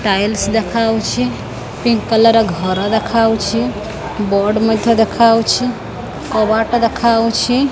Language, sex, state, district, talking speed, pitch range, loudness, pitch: Odia, female, Odisha, Khordha, 95 wpm, 205-230 Hz, -14 LUFS, 225 Hz